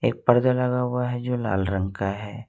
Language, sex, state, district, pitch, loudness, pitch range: Hindi, male, Jharkhand, Ranchi, 120 Hz, -24 LUFS, 100-125 Hz